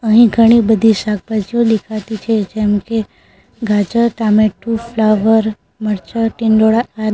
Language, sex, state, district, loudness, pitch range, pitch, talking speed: Gujarati, female, Gujarat, Valsad, -14 LUFS, 215-230 Hz, 220 Hz, 115 wpm